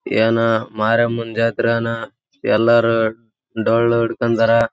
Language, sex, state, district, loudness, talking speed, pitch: Kannada, male, Karnataka, Raichur, -17 LUFS, 75 wpm, 115 Hz